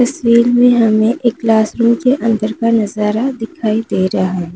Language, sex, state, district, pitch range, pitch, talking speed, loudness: Hindi, female, Uttar Pradesh, Lalitpur, 215-235 Hz, 225 Hz, 170 wpm, -13 LUFS